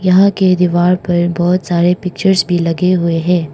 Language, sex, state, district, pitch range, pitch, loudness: Hindi, female, Arunachal Pradesh, Longding, 175-185 Hz, 180 Hz, -13 LUFS